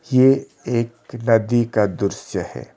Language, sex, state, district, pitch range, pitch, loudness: Hindi, male, Odisha, Khordha, 110-130 Hz, 120 Hz, -20 LUFS